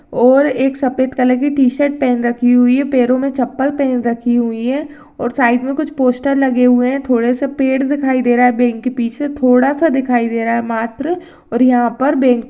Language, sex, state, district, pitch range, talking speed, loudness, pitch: Hindi, female, Rajasthan, Churu, 245-275 Hz, 190 wpm, -14 LUFS, 255 Hz